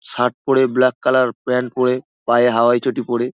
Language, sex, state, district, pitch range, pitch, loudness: Bengali, male, West Bengal, Dakshin Dinajpur, 120-130 Hz, 125 Hz, -17 LUFS